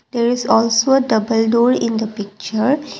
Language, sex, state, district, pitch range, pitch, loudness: English, female, Assam, Kamrup Metropolitan, 220-250 Hz, 230 Hz, -16 LUFS